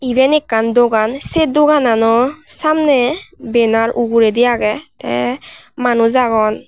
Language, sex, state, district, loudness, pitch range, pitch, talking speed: Chakma, female, Tripura, West Tripura, -14 LUFS, 225-290 Hz, 245 Hz, 110 wpm